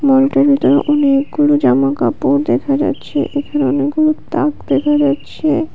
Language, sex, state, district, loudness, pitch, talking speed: Bengali, female, Tripura, West Tripura, -14 LUFS, 285 Hz, 115 wpm